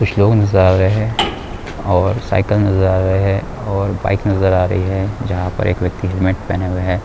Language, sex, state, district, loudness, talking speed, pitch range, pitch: Hindi, male, Bihar, East Champaran, -16 LUFS, 220 wpm, 90-100 Hz, 95 Hz